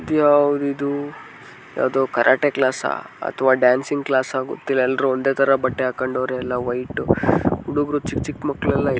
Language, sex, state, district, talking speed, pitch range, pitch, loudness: Kannada, male, Karnataka, Dharwad, 145 wpm, 130-145 Hz, 135 Hz, -20 LUFS